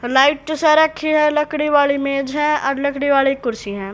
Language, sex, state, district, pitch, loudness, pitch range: Hindi, female, Haryana, Rohtak, 285 Hz, -17 LUFS, 270-300 Hz